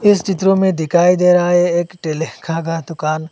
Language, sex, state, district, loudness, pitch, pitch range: Hindi, male, Assam, Hailakandi, -15 LUFS, 175 Hz, 165-180 Hz